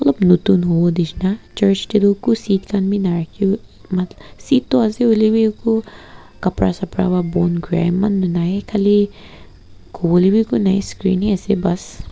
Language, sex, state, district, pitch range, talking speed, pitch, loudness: Nagamese, female, Nagaland, Kohima, 175-210 Hz, 165 wpm, 195 Hz, -17 LUFS